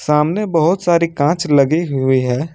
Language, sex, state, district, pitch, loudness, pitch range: Hindi, male, Jharkhand, Ranchi, 155 Hz, -15 LUFS, 140-170 Hz